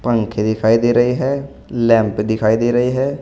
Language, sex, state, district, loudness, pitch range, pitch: Hindi, male, Uttar Pradesh, Saharanpur, -16 LUFS, 110-125 Hz, 120 Hz